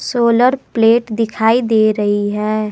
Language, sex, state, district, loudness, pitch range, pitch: Hindi, female, Jharkhand, Palamu, -14 LUFS, 215-235 Hz, 225 Hz